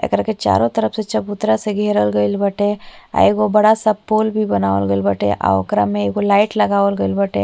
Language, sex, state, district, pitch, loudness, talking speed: Bhojpuri, female, Uttar Pradesh, Ghazipur, 195 Hz, -17 LUFS, 225 wpm